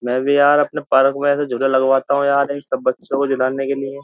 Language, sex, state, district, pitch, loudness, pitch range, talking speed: Hindi, male, Uttar Pradesh, Jyotiba Phule Nagar, 140 Hz, -17 LUFS, 135-145 Hz, 280 wpm